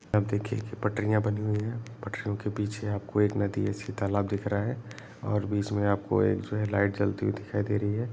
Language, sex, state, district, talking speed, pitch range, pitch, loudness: Hindi, male, Jharkhand, Sahebganj, 230 wpm, 100-105 Hz, 105 Hz, -30 LUFS